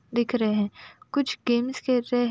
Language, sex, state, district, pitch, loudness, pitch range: Hindi, female, Uttar Pradesh, Jalaun, 245 Hz, -26 LUFS, 235-255 Hz